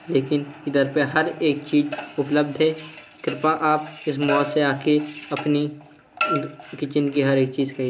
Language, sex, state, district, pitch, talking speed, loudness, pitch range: Hindi, male, Uttar Pradesh, Hamirpur, 150 Hz, 165 wpm, -22 LUFS, 145-155 Hz